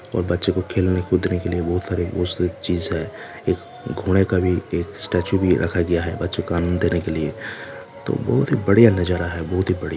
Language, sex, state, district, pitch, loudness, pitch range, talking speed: Hindi, male, Jharkhand, Jamtara, 90 Hz, -21 LUFS, 85-95 Hz, 225 wpm